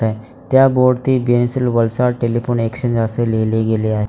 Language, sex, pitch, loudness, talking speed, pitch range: Marathi, male, 120 Hz, -16 LUFS, 145 wpm, 110-125 Hz